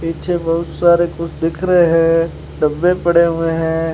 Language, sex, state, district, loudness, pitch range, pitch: Hindi, male, Rajasthan, Bikaner, -15 LUFS, 165-170 Hz, 165 Hz